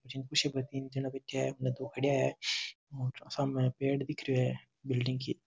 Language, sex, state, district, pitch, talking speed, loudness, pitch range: Marwari, male, Rajasthan, Nagaur, 135 Hz, 210 wpm, -34 LUFS, 130-135 Hz